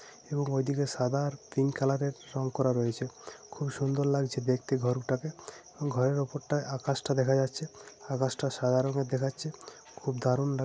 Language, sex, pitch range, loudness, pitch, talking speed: Bengali, male, 130-140 Hz, -31 LUFS, 135 Hz, 170 wpm